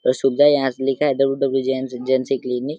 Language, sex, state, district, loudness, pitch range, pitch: Hindi, male, Uttar Pradesh, Deoria, -19 LUFS, 130-135 Hz, 135 Hz